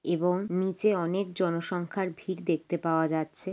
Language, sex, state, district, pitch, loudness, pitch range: Bengali, female, West Bengal, Jalpaiguri, 180 Hz, -29 LUFS, 170-190 Hz